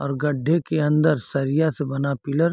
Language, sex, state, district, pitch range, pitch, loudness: Hindi, male, Bihar, East Champaran, 140-155 Hz, 150 Hz, -22 LUFS